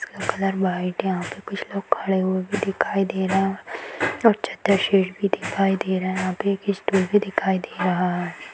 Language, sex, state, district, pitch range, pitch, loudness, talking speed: Hindi, female, Chhattisgarh, Bilaspur, 185-200 Hz, 195 Hz, -23 LUFS, 215 wpm